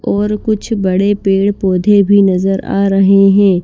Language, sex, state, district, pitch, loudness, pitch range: Hindi, female, Maharashtra, Washim, 195 Hz, -12 LUFS, 195-205 Hz